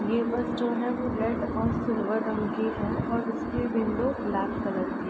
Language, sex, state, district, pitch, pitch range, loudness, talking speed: Hindi, female, Uttar Pradesh, Ghazipur, 235 Hz, 220-245 Hz, -28 LUFS, 210 wpm